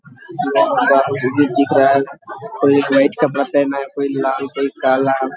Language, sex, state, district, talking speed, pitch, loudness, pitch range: Hindi, male, Jharkhand, Sahebganj, 155 wpm, 140 Hz, -16 LUFS, 135-140 Hz